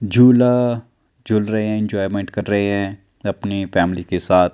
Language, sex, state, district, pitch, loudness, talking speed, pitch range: Hindi, male, Chandigarh, Chandigarh, 100 Hz, -18 LUFS, 160 wpm, 95-110 Hz